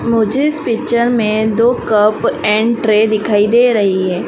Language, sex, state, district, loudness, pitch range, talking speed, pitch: Hindi, female, Madhya Pradesh, Dhar, -13 LUFS, 210-235 Hz, 170 wpm, 220 Hz